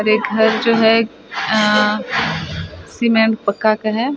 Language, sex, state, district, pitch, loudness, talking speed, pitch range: Chhattisgarhi, female, Chhattisgarh, Sarguja, 220 Hz, -16 LUFS, 145 wpm, 215-225 Hz